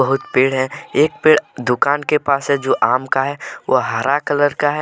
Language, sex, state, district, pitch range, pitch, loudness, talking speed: Hindi, male, Jharkhand, Deoghar, 130-145 Hz, 140 Hz, -17 LUFS, 225 wpm